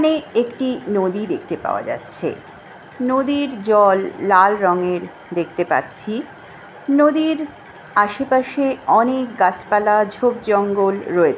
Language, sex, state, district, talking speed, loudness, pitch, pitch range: Bengali, female, West Bengal, Jhargram, 95 wpm, -18 LUFS, 215 Hz, 195-260 Hz